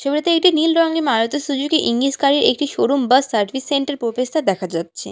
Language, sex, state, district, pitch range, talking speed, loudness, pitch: Bengali, female, West Bengal, Alipurduar, 240-300 Hz, 185 wpm, -17 LUFS, 280 Hz